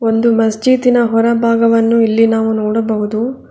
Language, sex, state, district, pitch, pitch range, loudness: Kannada, female, Karnataka, Bangalore, 225 Hz, 225-235 Hz, -13 LUFS